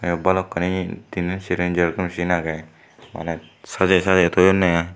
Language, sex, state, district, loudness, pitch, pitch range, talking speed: Chakma, male, Tripura, Dhalai, -20 LUFS, 90 Hz, 85-95 Hz, 135 wpm